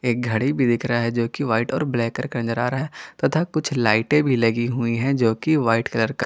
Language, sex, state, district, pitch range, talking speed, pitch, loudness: Hindi, male, Jharkhand, Garhwa, 115-135 Hz, 280 wpm, 120 Hz, -21 LUFS